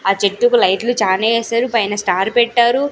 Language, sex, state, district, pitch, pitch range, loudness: Telugu, female, Andhra Pradesh, Sri Satya Sai, 230 Hz, 200-240 Hz, -15 LUFS